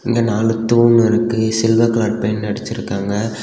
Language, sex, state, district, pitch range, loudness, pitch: Tamil, male, Tamil Nadu, Kanyakumari, 110-115 Hz, -16 LUFS, 115 Hz